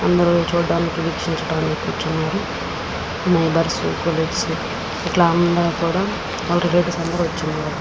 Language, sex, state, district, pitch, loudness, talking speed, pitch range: Telugu, female, Andhra Pradesh, Srikakulam, 170 Hz, -20 LUFS, 85 wpm, 170-175 Hz